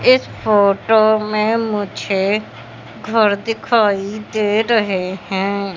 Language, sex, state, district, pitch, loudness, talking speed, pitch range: Hindi, female, Madhya Pradesh, Katni, 210 Hz, -17 LUFS, 95 wpm, 200-220 Hz